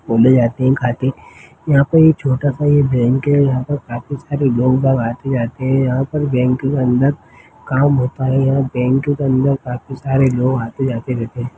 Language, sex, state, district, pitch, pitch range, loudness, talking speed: Hindi, male, Chhattisgarh, Jashpur, 130 Hz, 125-140 Hz, -16 LUFS, 200 wpm